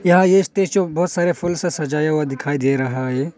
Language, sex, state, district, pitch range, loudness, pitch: Hindi, male, Arunachal Pradesh, Longding, 140-180 Hz, -19 LUFS, 170 Hz